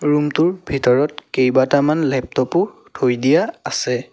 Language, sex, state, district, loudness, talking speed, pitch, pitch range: Assamese, male, Assam, Sonitpur, -18 LUFS, 130 wpm, 140 Hz, 125-150 Hz